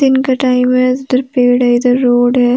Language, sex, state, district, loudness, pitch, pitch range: Hindi, female, Jharkhand, Deoghar, -12 LUFS, 250 Hz, 245-255 Hz